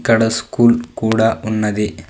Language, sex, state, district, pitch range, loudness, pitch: Telugu, male, Andhra Pradesh, Sri Satya Sai, 105-115 Hz, -16 LUFS, 110 Hz